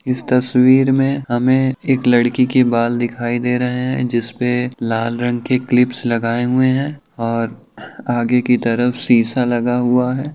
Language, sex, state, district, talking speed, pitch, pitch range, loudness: Hindi, male, Bihar, Kishanganj, 160 wpm, 125 Hz, 120-130 Hz, -16 LUFS